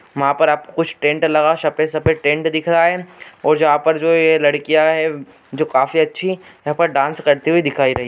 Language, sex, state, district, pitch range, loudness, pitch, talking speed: Hindi, male, Bihar, Begusarai, 145-160 Hz, -16 LUFS, 155 Hz, 210 wpm